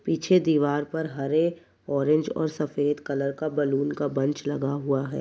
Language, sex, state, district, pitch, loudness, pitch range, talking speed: Hindi, male, Uttar Pradesh, Jyotiba Phule Nagar, 145 Hz, -26 LUFS, 140-155 Hz, 175 wpm